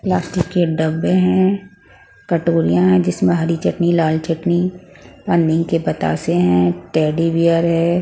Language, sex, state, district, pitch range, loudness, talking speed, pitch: Hindi, female, Punjab, Pathankot, 155-175 Hz, -17 LUFS, 140 wpm, 165 Hz